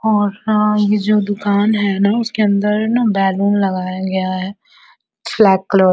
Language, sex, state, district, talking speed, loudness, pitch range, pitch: Hindi, female, Bihar, Vaishali, 170 wpm, -15 LUFS, 195-215 Hz, 205 Hz